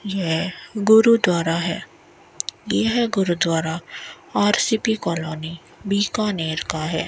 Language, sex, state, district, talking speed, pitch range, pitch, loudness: Hindi, female, Rajasthan, Bikaner, 100 wpm, 165-215 Hz, 180 Hz, -21 LUFS